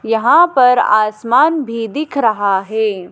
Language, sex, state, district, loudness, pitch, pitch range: Hindi, female, Madhya Pradesh, Dhar, -13 LUFS, 230 Hz, 215-280 Hz